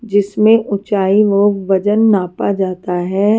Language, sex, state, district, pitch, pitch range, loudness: Hindi, female, Maharashtra, Washim, 200 Hz, 190-210 Hz, -14 LUFS